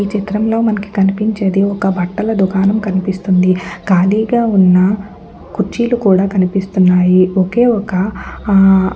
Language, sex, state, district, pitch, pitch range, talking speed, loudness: Telugu, female, Andhra Pradesh, Guntur, 195 Hz, 185-210 Hz, 115 wpm, -13 LUFS